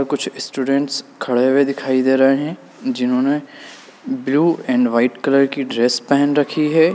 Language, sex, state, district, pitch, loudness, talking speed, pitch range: Hindi, male, Uttar Pradesh, Lalitpur, 140 Hz, -17 LUFS, 155 wpm, 130-165 Hz